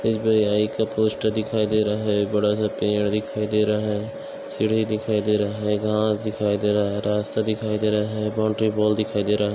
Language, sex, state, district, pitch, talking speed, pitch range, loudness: Hindi, male, Jharkhand, Sahebganj, 105 Hz, 215 wpm, 105-110 Hz, -23 LUFS